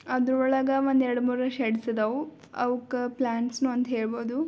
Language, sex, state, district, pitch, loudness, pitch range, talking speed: Kannada, female, Karnataka, Belgaum, 250 Hz, -27 LUFS, 240-265 Hz, 160 wpm